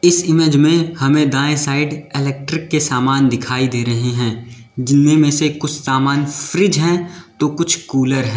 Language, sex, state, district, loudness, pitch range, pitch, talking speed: Hindi, male, Uttar Pradesh, Lalitpur, -16 LUFS, 130-160 Hz, 145 Hz, 170 wpm